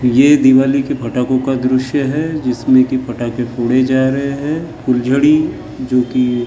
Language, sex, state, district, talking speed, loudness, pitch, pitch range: Hindi, male, Maharashtra, Gondia, 150 wpm, -14 LUFS, 130 Hz, 125-140 Hz